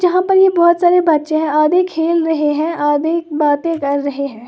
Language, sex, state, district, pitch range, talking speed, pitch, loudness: Hindi, female, Uttar Pradesh, Lalitpur, 295-345 Hz, 215 wpm, 320 Hz, -14 LUFS